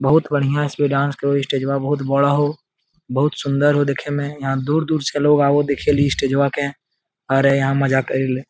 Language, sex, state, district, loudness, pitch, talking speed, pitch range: Hindi, male, Bihar, Jamui, -18 LUFS, 140 Hz, 220 wpm, 135-145 Hz